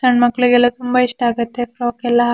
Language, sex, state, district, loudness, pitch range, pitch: Kannada, female, Karnataka, Shimoga, -16 LUFS, 240-245 Hz, 245 Hz